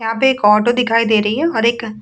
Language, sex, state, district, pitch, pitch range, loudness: Hindi, female, Bihar, Vaishali, 230 Hz, 215-240 Hz, -14 LUFS